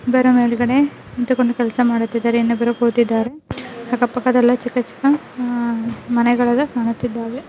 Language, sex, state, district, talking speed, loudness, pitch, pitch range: Kannada, female, Karnataka, Gulbarga, 130 wpm, -18 LUFS, 245 Hz, 235-250 Hz